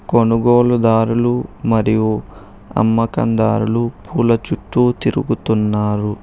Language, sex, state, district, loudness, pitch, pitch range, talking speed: Telugu, male, Telangana, Hyderabad, -16 LUFS, 115 Hz, 110-120 Hz, 65 wpm